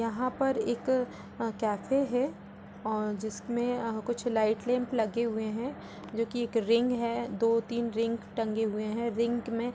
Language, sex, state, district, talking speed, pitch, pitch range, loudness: Hindi, female, Uttar Pradesh, Budaun, 170 wpm, 235 Hz, 225-245 Hz, -31 LUFS